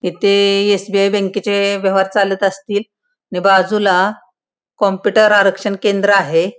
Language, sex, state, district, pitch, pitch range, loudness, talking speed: Marathi, female, Maharashtra, Pune, 200 Hz, 195-205 Hz, -14 LUFS, 110 wpm